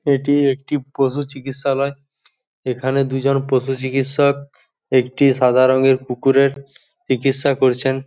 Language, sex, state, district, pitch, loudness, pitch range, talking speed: Bengali, male, West Bengal, Jhargram, 135 Hz, -18 LUFS, 130-140 Hz, 90 wpm